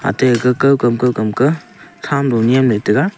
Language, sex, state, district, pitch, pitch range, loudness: Wancho, male, Arunachal Pradesh, Longding, 125 Hz, 120-140 Hz, -14 LUFS